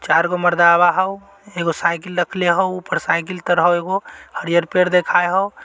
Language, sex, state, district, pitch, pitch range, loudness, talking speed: Magahi, male, Bihar, Samastipur, 175 Hz, 170-185 Hz, -17 LUFS, 180 wpm